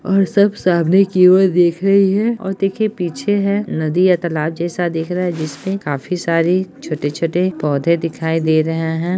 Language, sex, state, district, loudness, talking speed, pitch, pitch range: Hindi, male, Bihar, Araria, -16 LUFS, 185 wpm, 175 Hz, 160-195 Hz